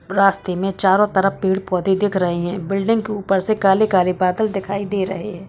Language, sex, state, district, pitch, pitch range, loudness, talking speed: Hindi, female, Bihar, Gaya, 195 Hz, 185-200 Hz, -18 LUFS, 195 wpm